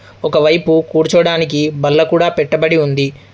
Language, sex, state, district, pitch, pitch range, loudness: Telugu, male, Telangana, Adilabad, 160 Hz, 145-160 Hz, -13 LUFS